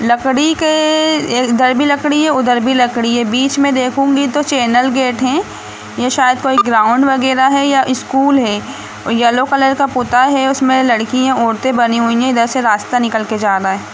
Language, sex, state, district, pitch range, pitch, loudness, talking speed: Hindi, female, Jharkhand, Sahebganj, 240-275 Hz, 255 Hz, -13 LUFS, 175 wpm